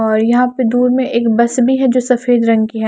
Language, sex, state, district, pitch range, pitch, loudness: Hindi, female, Maharashtra, Washim, 230-250 Hz, 245 Hz, -13 LUFS